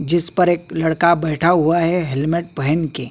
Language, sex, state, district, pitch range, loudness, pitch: Hindi, male, Uttarakhand, Tehri Garhwal, 155-170 Hz, -17 LUFS, 165 Hz